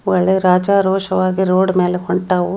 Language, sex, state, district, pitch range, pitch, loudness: Kannada, female, Karnataka, Dharwad, 180-190 Hz, 185 Hz, -15 LUFS